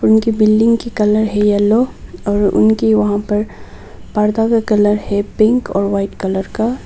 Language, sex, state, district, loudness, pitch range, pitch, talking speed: Hindi, female, Nagaland, Kohima, -15 LUFS, 205-225 Hz, 210 Hz, 165 wpm